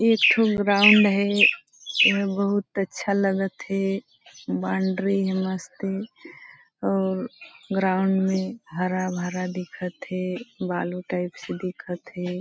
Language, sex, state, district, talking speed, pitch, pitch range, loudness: Hindi, female, Chhattisgarh, Balrampur, 115 wpm, 190 Hz, 185-200 Hz, -23 LUFS